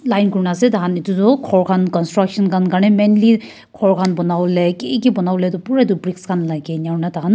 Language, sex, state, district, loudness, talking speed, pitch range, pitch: Nagamese, female, Nagaland, Kohima, -16 LUFS, 255 wpm, 180-210 Hz, 185 Hz